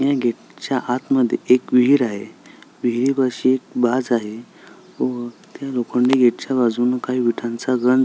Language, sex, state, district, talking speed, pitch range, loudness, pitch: Marathi, male, Maharashtra, Sindhudurg, 150 wpm, 120-130 Hz, -19 LUFS, 125 Hz